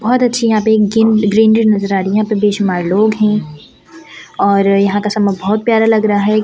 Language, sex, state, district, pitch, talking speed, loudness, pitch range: Hindi, female, Delhi, New Delhi, 210 Hz, 215 wpm, -13 LUFS, 200-220 Hz